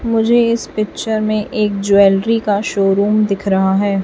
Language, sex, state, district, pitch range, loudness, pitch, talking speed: Hindi, female, Chhattisgarh, Raipur, 200-220 Hz, -15 LUFS, 205 Hz, 165 wpm